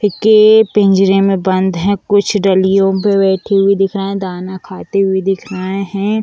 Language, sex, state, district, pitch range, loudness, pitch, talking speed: Hindi, female, Bihar, Samastipur, 190-200 Hz, -12 LUFS, 195 Hz, 185 wpm